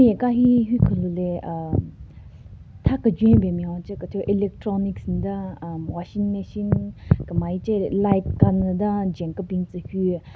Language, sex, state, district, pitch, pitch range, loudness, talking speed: Rengma, female, Nagaland, Kohima, 185 Hz, 170-200 Hz, -23 LUFS, 160 wpm